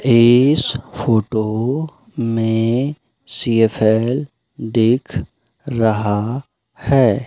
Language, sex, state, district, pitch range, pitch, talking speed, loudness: Hindi, male, Madhya Pradesh, Umaria, 115-130 Hz, 120 Hz, 60 wpm, -17 LUFS